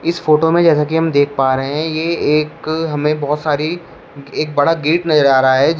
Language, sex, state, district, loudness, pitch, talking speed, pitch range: Hindi, male, Uttar Pradesh, Shamli, -15 LUFS, 155 Hz, 240 wpm, 145-165 Hz